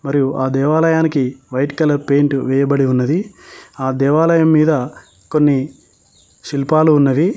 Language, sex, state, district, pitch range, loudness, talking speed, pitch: Telugu, male, Telangana, Mahabubabad, 135-155 Hz, -15 LUFS, 115 wpm, 140 Hz